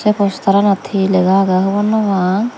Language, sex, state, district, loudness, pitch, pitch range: Chakma, female, Tripura, Dhalai, -14 LUFS, 195 Hz, 190-205 Hz